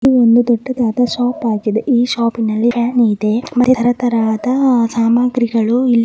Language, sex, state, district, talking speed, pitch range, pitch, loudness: Kannada, male, Karnataka, Mysore, 160 wpm, 230-245 Hz, 240 Hz, -14 LUFS